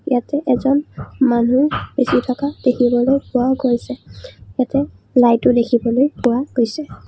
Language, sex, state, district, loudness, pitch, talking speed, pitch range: Assamese, female, Assam, Kamrup Metropolitan, -17 LUFS, 255 Hz, 120 wpm, 245-275 Hz